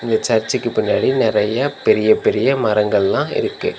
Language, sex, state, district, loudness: Tamil, male, Tamil Nadu, Nilgiris, -17 LUFS